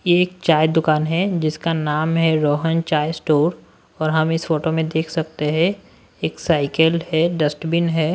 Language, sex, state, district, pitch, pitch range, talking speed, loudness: Hindi, male, Maharashtra, Washim, 160 Hz, 155-165 Hz, 170 wpm, -19 LUFS